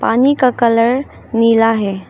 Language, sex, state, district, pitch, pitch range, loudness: Hindi, female, Arunachal Pradesh, Longding, 230 Hz, 225-255 Hz, -14 LUFS